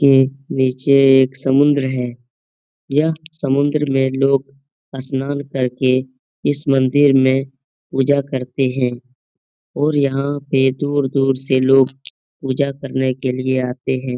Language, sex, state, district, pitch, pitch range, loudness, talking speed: Hindi, male, Bihar, Jamui, 135 Hz, 130-140 Hz, -17 LUFS, 125 wpm